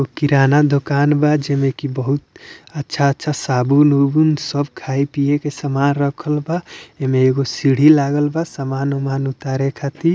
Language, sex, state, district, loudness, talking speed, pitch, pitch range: Bhojpuri, male, Bihar, Muzaffarpur, -17 LUFS, 155 wpm, 140 Hz, 135-150 Hz